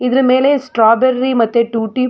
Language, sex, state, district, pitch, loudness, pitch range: Kannada, female, Karnataka, Mysore, 255 Hz, -13 LUFS, 235-260 Hz